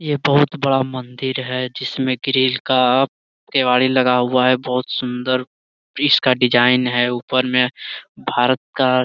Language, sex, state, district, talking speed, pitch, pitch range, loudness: Hindi, male, Bihar, Jamui, 150 wpm, 130 Hz, 125-130 Hz, -17 LUFS